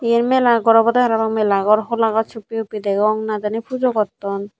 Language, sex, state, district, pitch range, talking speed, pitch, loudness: Chakma, female, Tripura, Unakoti, 210-230 Hz, 210 wpm, 225 Hz, -18 LUFS